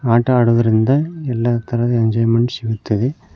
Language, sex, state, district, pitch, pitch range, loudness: Kannada, male, Karnataka, Koppal, 120 Hz, 115-125 Hz, -17 LUFS